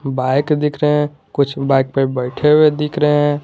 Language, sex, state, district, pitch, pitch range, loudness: Hindi, male, Jharkhand, Garhwa, 145 Hz, 135-150 Hz, -16 LUFS